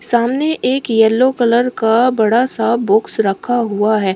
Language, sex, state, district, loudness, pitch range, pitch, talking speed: Hindi, female, Uttar Pradesh, Shamli, -14 LUFS, 220-250 Hz, 235 Hz, 160 wpm